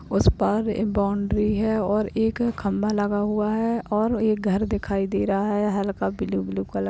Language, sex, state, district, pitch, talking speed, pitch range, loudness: Hindi, female, Uttar Pradesh, Hamirpur, 210 Hz, 185 wpm, 200-215 Hz, -24 LUFS